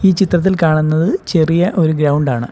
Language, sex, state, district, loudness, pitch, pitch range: Malayalam, male, Kerala, Kollam, -14 LUFS, 160 Hz, 155-180 Hz